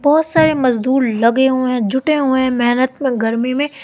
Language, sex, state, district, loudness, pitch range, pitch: Hindi, female, Madhya Pradesh, Katni, -15 LUFS, 245-285 Hz, 260 Hz